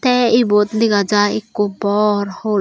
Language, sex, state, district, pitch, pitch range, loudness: Chakma, female, Tripura, Dhalai, 210 Hz, 205-225 Hz, -16 LUFS